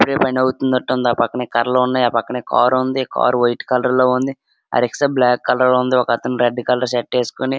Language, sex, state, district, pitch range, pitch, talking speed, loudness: Telugu, male, Andhra Pradesh, Srikakulam, 120-130 Hz, 125 Hz, 215 wpm, -17 LUFS